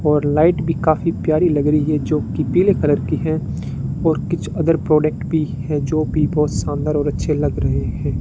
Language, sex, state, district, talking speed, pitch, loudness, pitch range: Hindi, male, Rajasthan, Bikaner, 205 wpm, 150 Hz, -18 LUFS, 145-160 Hz